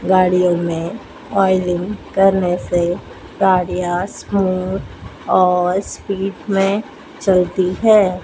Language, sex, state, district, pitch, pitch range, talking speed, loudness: Hindi, female, Madhya Pradesh, Dhar, 185 Hz, 180-195 Hz, 85 wpm, -17 LUFS